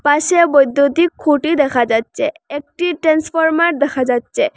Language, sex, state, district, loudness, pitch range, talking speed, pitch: Bengali, female, Assam, Hailakandi, -15 LUFS, 280-330 Hz, 120 wpm, 295 Hz